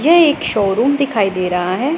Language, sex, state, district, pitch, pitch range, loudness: Hindi, female, Punjab, Pathankot, 235 Hz, 195-295 Hz, -15 LUFS